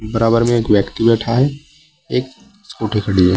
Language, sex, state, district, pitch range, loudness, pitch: Hindi, male, Uttar Pradesh, Saharanpur, 110-145 Hz, -16 LUFS, 115 Hz